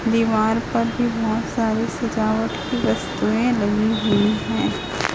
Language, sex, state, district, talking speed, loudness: Hindi, female, Chhattisgarh, Raipur, 130 wpm, -21 LUFS